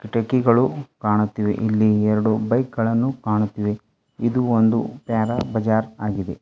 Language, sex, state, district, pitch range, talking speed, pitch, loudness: Kannada, female, Karnataka, Bidar, 105-120 Hz, 110 wpm, 110 Hz, -21 LUFS